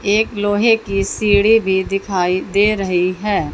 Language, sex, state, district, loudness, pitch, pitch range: Hindi, female, Haryana, Jhajjar, -16 LUFS, 200 Hz, 190-210 Hz